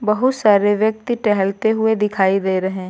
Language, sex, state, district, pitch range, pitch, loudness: Hindi, female, Uttar Pradesh, Lucknow, 195-220 Hz, 210 Hz, -17 LUFS